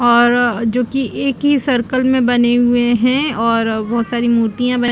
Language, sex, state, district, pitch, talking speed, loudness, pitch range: Hindi, female, Chhattisgarh, Bastar, 245 Hz, 185 wpm, -15 LUFS, 235-255 Hz